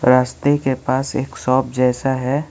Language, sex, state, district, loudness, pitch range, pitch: Hindi, male, West Bengal, Alipurduar, -18 LUFS, 125-135 Hz, 130 Hz